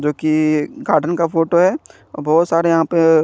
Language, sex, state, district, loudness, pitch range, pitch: Hindi, male, Chandigarh, Chandigarh, -16 LUFS, 155-170 Hz, 165 Hz